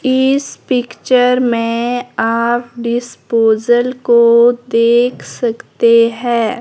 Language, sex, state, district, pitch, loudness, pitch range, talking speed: Hindi, female, Himachal Pradesh, Shimla, 240 Hz, -13 LUFS, 235-245 Hz, 80 wpm